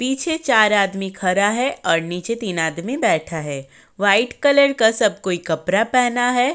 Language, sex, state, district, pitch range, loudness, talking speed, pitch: Hindi, female, Uttar Pradesh, Jyotiba Phule Nagar, 175-250 Hz, -18 LUFS, 175 wpm, 205 Hz